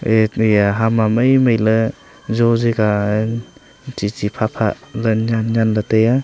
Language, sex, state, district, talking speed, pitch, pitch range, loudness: Wancho, male, Arunachal Pradesh, Longding, 175 wpm, 110 Hz, 110-115 Hz, -17 LUFS